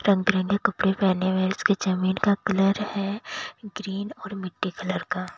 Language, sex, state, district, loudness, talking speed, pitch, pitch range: Hindi, female, Bihar, Katihar, -25 LUFS, 165 wpm, 195 Hz, 185-205 Hz